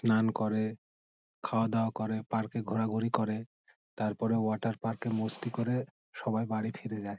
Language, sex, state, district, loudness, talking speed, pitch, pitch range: Bengali, male, West Bengal, Dakshin Dinajpur, -33 LUFS, 150 wpm, 110 Hz, 110-115 Hz